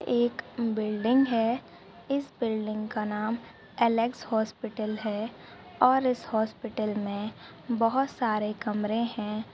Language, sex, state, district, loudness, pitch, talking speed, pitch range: Hindi, female, Maharashtra, Nagpur, -29 LUFS, 225 Hz, 115 wpm, 215-240 Hz